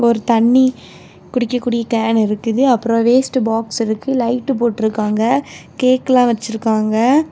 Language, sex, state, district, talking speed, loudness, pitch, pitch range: Tamil, female, Tamil Nadu, Kanyakumari, 125 wpm, -16 LUFS, 235 Hz, 225-255 Hz